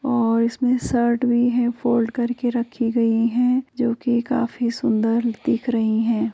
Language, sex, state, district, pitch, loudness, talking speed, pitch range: Hindi, female, Uttar Pradesh, Jyotiba Phule Nagar, 235 Hz, -21 LUFS, 160 wpm, 230-245 Hz